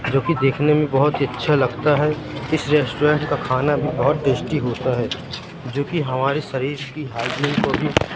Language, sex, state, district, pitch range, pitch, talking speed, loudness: Hindi, male, Madhya Pradesh, Katni, 130-150 Hz, 145 Hz, 190 wpm, -20 LUFS